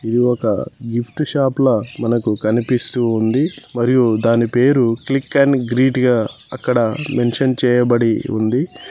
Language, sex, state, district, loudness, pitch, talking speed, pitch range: Telugu, male, Telangana, Mahabubabad, -17 LUFS, 125 Hz, 130 wpm, 115-130 Hz